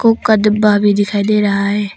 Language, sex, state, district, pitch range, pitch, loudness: Hindi, female, Arunachal Pradesh, Papum Pare, 205-215 Hz, 205 Hz, -13 LUFS